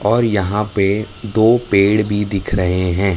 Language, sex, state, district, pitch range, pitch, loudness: Hindi, male, Chhattisgarh, Raipur, 100-110 Hz, 105 Hz, -16 LUFS